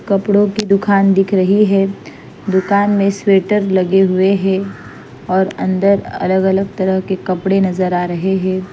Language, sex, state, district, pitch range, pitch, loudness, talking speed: Hindi, female, Punjab, Fazilka, 190-200 Hz, 195 Hz, -14 LUFS, 160 wpm